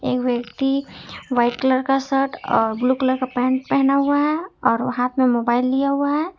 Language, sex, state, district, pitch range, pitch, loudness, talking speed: Hindi, female, Jharkhand, Ranchi, 250-275 Hz, 260 Hz, -20 LUFS, 195 wpm